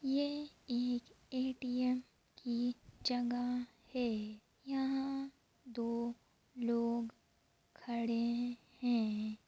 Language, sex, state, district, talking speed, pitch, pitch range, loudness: Hindi, female, Uttar Pradesh, Ghazipur, 70 wpm, 245 Hz, 235-255 Hz, -39 LUFS